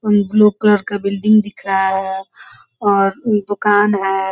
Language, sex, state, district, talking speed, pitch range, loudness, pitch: Hindi, female, Bihar, Gopalganj, 140 wpm, 195-210 Hz, -15 LUFS, 205 Hz